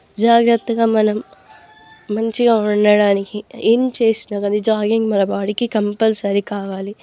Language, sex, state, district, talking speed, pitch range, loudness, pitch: Telugu, female, Andhra Pradesh, Guntur, 95 wpm, 200-225 Hz, -17 LUFS, 210 Hz